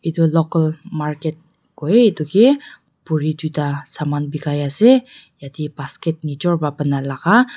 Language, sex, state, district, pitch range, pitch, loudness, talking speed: Nagamese, female, Nagaland, Dimapur, 150-170 Hz, 155 Hz, -18 LUFS, 125 wpm